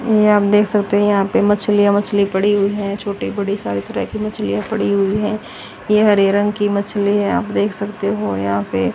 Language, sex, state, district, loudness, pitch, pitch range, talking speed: Hindi, female, Haryana, Rohtak, -17 LUFS, 205 Hz, 200-210 Hz, 220 wpm